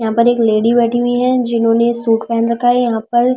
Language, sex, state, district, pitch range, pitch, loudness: Hindi, female, Delhi, New Delhi, 230-245 Hz, 235 Hz, -14 LUFS